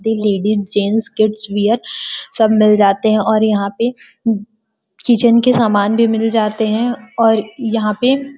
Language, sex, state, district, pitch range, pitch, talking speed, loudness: Hindi, female, Uttar Pradesh, Gorakhpur, 210-230 Hz, 220 Hz, 165 wpm, -15 LUFS